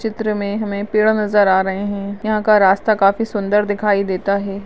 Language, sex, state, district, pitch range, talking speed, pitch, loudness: Hindi, female, Rajasthan, Nagaur, 200-215 Hz, 205 wpm, 205 Hz, -17 LUFS